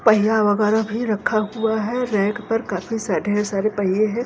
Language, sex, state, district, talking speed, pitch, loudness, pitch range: Hindi, female, Punjab, Kapurthala, 200 wpm, 215 Hz, -20 LUFS, 205-225 Hz